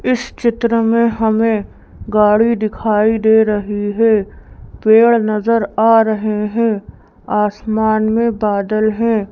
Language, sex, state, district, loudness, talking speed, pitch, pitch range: Hindi, female, Madhya Pradesh, Bhopal, -15 LUFS, 115 wpm, 220 Hz, 210-230 Hz